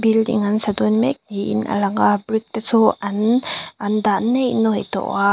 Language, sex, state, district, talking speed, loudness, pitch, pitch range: Mizo, female, Mizoram, Aizawl, 215 wpm, -19 LUFS, 220 Hz, 205-225 Hz